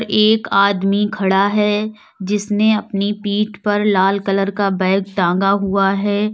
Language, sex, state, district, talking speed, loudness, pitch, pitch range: Hindi, female, Uttar Pradesh, Lalitpur, 140 wpm, -16 LUFS, 205 Hz, 195-210 Hz